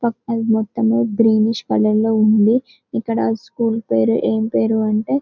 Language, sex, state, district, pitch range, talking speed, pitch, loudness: Telugu, female, Telangana, Karimnagar, 205-230 Hz, 150 wpm, 220 Hz, -17 LUFS